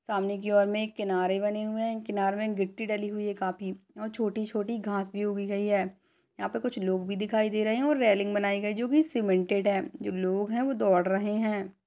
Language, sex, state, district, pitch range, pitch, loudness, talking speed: Hindi, female, Chhattisgarh, Jashpur, 195-215 Hz, 205 Hz, -29 LUFS, 230 wpm